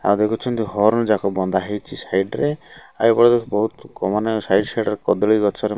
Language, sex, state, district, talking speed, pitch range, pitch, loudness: Odia, male, Odisha, Malkangiri, 210 wpm, 100-115 Hz, 105 Hz, -19 LUFS